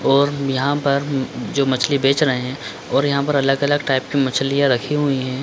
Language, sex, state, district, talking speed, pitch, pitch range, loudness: Hindi, male, Chhattisgarh, Bilaspur, 210 wpm, 140 Hz, 135-145 Hz, -19 LUFS